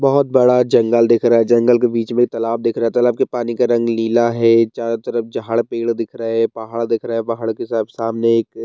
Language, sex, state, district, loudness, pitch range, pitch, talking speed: Hindi, male, Bihar, Bhagalpur, -17 LUFS, 115-120 Hz, 115 Hz, 255 wpm